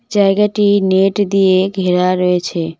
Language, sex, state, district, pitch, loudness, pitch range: Bengali, female, West Bengal, Cooch Behar, 190 Hz, -14 LUFS, 180-200 Hz